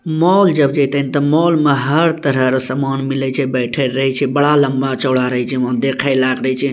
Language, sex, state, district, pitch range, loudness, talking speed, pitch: Maithili, male, Bihar, Bhagalpur, 130-145 Hz, -15 LUFS, 230 wpm, 135 Hz